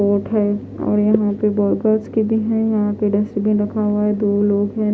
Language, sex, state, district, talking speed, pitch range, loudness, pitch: Hindi, female, Odisha, Khordha, 170 wpm, 205-215 Hz, -18 LUFS, 210 Hz